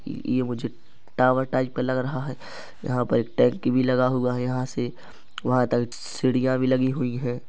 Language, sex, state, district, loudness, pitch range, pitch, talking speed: Hindi, male, Chhattisgarh, Rajnandgaon, -24 LUFS, 120-130 Hz, 125 Hz, 200 wpm